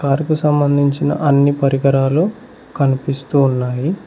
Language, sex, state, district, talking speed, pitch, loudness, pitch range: Telugu, male, Telangana, Mahabubabad, 90 wpm, 140 Hz, -16 LUFS, 135-150 Hz